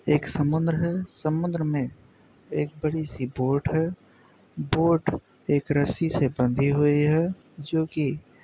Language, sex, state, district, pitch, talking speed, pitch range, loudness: Hindi, male, Uttar Pradesh, Budaun, 150 Hz, 140 wpm, 140-165 Hz, -25 LUFS